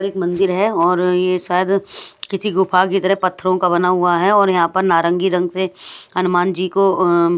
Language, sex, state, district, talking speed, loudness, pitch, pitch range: Hindi, female, Punjab, Pathankot, 195 wpm, -16 LUFS, 185 Hz, 180-190 Hz